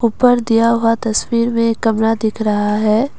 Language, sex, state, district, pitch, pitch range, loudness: Hindi, female, Assam, Kamrup Metropolitan, 225 Hz, 220-230 Hz, -15 LUFS